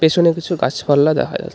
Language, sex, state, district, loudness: Bengali, male, West Bengal, Darjeeling, -16 LUFS